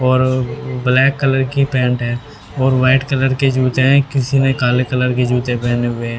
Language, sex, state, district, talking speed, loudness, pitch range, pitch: Hindi, male, Haryana, Rohtak, 205 wpm, -15 LUFS, 125-135 Hz, 130 Hz